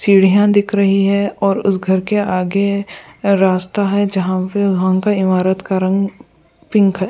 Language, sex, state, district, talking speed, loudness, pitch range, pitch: Hindi, female, Goa, North and South Goa, 160 wpm, -15 LUFS, 190-200 Hz, 195 Hz